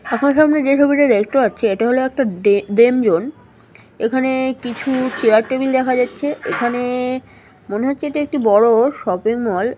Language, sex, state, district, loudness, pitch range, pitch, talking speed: Bengali, female, West Bengal, North 24 Parganas, -16 LUFS, 230-270 Hz, 255 Hz, 170 wpm